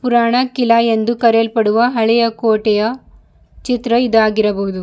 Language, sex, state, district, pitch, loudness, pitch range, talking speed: Kannada, female, Karnataka, Bidar, 230 Hz, -14 LUFS, 220-240 Hz, 85 wpm